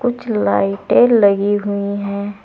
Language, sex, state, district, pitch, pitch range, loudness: Hindi, female, Uttar Pradesh, Saharanpur, 200 Hz, 200-215 Hz, -16 LUFS